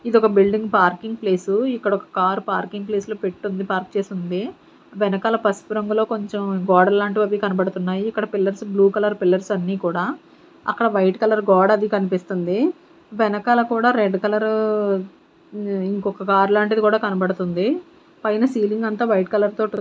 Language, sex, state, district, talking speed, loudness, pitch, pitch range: Telugu, female, Andhra Pradesh, Sri Satya Sai, 165 wpm, -20 LUFS, 205 Hz, 195-220 Hz